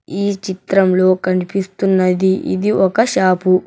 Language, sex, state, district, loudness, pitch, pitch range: Telugu, male, Telangana, Hyderabad, -15 LUFS, 190 Hz, 185-195 Hz